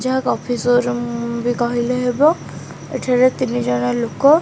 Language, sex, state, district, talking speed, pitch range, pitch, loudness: Odia, female, Odisha, Khordha, 150 wpm, 235-255 Hz, 245 Hz, -18 LUFS